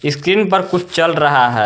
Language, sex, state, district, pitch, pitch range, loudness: Hindi, male, Jharkhand, Garhwa, 165 Hz, 145-185 Hz, -14 LUFS